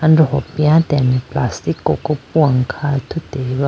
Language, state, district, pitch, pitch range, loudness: Idu Mishmi, Arunachal Pradesh, Lower Dibang Valley, 140 Hz, 130-155 Hz, -17 LUFS